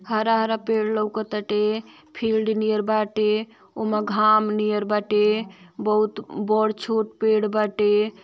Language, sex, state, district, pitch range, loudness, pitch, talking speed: Bhojpuri, female, Uttar Pradesh, Ghazipur, 210-220 Hz, -22 LUFS, 215 Hz, 115 wpm